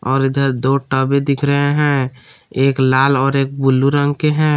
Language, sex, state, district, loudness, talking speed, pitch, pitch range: Hindi, male, Jharkhand, Palamu, -15 LUFS, 195 wpm, 135 Hz, 135-145 Hz